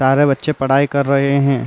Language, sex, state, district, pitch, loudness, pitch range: Hindi, male, Uttar Pradesh, Varanasi, 140 Hz, -15 LUFS, 135-140 Hz